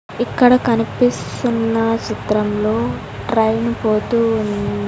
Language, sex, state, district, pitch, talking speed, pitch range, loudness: Telugu, female, Andhra Pradesh, Sri Satya Sai, 225 Hz, 60 wpm, 210-230 Hz, -17 LUFS